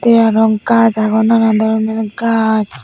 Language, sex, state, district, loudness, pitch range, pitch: Chakma, female, Tripura, Unakoti, -13 LUFS, 220-230 Hz, 220 Hz